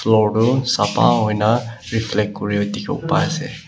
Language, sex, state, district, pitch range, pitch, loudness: Nagamese, male, Nagaland, Kohima, 105-135 Hz, 115 Hz, -18 LUFS